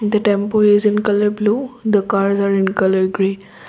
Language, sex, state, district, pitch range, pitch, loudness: English, female, Assam, Kamrup Metropolitan, 195-210 Hz, 205 Hz, -16 LUFS